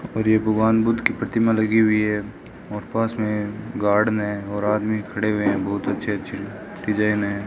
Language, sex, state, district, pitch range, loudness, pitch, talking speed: Hindi, male, Rajasthan, Bikaner, 105-110 Hz, -22 LUFS, 105 Hz, 185 wpm